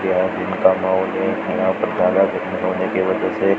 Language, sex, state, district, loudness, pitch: Hindi, male, Rajasthan, Bikaner, -19 LUFS, 95 Hz